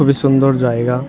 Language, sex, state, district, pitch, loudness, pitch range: Bengali, male, West Bengal, Jhargram, 135 Hz, -14 LUFS, 125-140 Hz